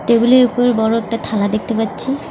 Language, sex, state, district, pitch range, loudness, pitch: Bengali, female, West Bengal, Alipurduar, 220-245 Hz, -15 LUFS, 230 Hz